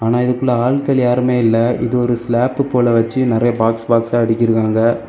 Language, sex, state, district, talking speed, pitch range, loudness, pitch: Tamil, male, Tamil Nadu, Kanyakumari, 165 wpm, 115-125 Hz, -15 LUFS, 120 Hz